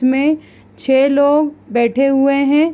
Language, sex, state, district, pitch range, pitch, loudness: Hindi, female, Bihar, East Champaran, 265-295 Hz, 275 Hz, -15 LUFS